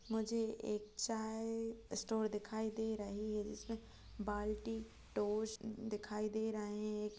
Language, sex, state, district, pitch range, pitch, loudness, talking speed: Hindi, female, Chhattisgarh, Kabirdham, 210-220 Hz, 220 Hz, -42 LUFS, 125 wpm